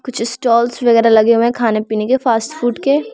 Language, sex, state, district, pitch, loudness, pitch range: Hindi, female, Bihar, Samastipur, 235 Hz, -14 LUFS, 230-255 Hz